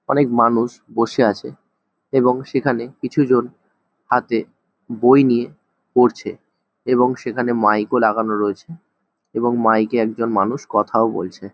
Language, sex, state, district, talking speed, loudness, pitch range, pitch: Bengali, male, West Bengal, Jhargram, 125 wpm, -18 LUFS, 110-125 Hz, 120 Hz